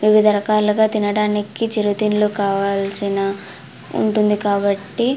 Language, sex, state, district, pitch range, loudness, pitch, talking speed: Telugu, female, Andhra Pradesh, Anantapur, 200-215 Hz, -18 LUFS, 210 Hz, 95 wpm